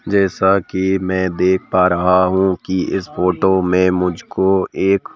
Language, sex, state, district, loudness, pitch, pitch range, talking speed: Hindi, male, Madhya Pradesh, Bhopal, -16 LUFS, 95 Hz, 90-95 Hz, 150 wpm